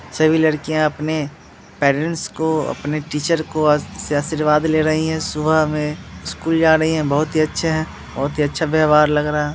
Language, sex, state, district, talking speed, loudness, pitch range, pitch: Hindi, male, Bihar, Muzaffarpur, 195 wpm, -18 LUFS, 150-160 Hz, 155 Hz